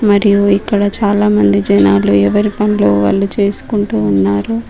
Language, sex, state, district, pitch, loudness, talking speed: Telugu, female, Telangana, Mahabubabad, 200 Hz, -12 LUFS, 115 wpm